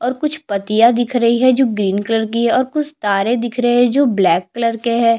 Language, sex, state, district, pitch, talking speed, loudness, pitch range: Hindi, female, Chhattisgarh, Jashpur, 235 Hz, 255 wpm, -16 LUFS, 225-250 Hz